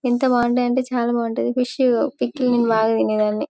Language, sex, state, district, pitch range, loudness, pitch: Telugu, female, Telangana, Karimnagar, 230-250 Hz, -19 LUFS, 240 Hz